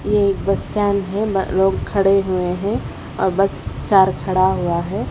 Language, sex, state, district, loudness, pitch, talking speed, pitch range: Hindi, female, Odisha, Khordha, -18 LUFS, 195 Hz, 200 wpm, 185-200 Hz